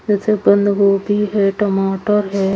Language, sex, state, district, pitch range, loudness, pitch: Hindi, female, Haryana, Charkhi Dadri, 195-210 Hz, -16 LUFS, 200 Hz